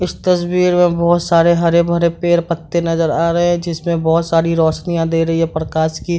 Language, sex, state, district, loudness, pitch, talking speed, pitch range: Hindi, male, Bihar, Madhepura, -15 LUFS, 170 Hz, 195 wpm, 165-175 Hz